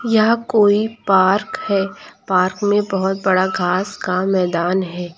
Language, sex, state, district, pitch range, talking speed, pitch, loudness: Hindi, female, Uttar Pradesh, Lucknow, 185-210 Hz, 140 wpm, 195 Hz, -17 LUFS